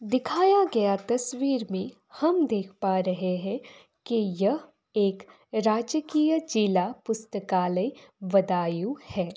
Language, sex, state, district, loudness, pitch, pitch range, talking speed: Hindi, female, Uttar Pradesh, Budaun, -27 LUFS, 215 Hz, 190-255 Hz, 110 wpm